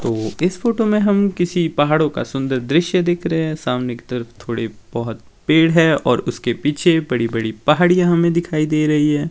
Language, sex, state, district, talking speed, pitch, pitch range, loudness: Hindi, male, Himachal Pradesh, Shimla, 200 wpm, 155 Hz, 120-170 Hz, -18 LUFS